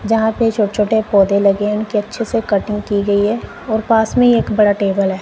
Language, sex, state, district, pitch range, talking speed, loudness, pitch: Hindi, female, Punjab, Kapurthala, 205-225 Hz, 255 wpm, -15 LUFS, 210 Hz